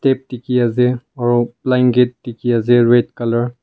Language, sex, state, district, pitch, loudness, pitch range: Nagamese, male, Nagaland, Kohima, 120 Hz, -16 LUFS, 120-125 Hz